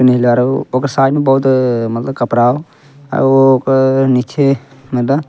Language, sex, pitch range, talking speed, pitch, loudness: Angika, male, 125-135 Hz, 180 wpm, 135 Hz, -13 LUFS